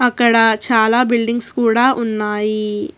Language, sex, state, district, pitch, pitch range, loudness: Telugu, female, Telangana, Hyderabad, 230 Hz, 220-245 Hz, -15 LUFS